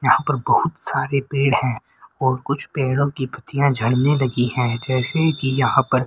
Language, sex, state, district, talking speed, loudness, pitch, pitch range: Hindi, male, Haryana, Rohtak, 180 wpm, -20 LUFS, 135 Hz, 130-140 Hz